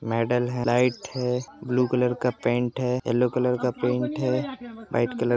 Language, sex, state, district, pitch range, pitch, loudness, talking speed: Hindi, male, Uttar Pradesh, Jyotiba Phule Nagar, 120-125 Hz, 125 Hz, -25 LUFS, 190 wpm